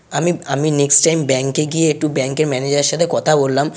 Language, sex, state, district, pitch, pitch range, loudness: Bengali, male, West Bengal, North 24 Parganas, 150 Hz, 140-155 Hz, -15 LUFS